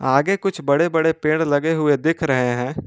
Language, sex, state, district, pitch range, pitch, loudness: Hindi, male, Jharkhand, Ranchi, 140-160 Hz, 155 Hz, -19 LUFS